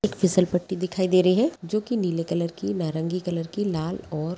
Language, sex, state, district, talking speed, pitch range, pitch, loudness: Hindi, female, Bihar, Gaya, 230 wpm, 170-190 Hz, 180 Hz, -25 LUFS